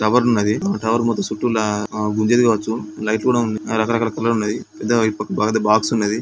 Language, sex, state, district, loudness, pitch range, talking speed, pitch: Telugu, male, Andhra Pradesh, Srikakulam, -19 LUFS, 105-115 Hz, 185 wpm, 110 Hz